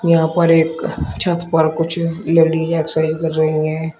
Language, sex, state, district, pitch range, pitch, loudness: Hindi, male, Uttar Pradesh, Shamli, 160-165 Hz, 160 Hz, -17 LUFS